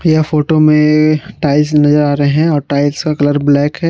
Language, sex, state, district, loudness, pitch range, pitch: Hindi, male, Jharkhand, Palamu, -12 LUFS, 145-155 Hz, 150 Hz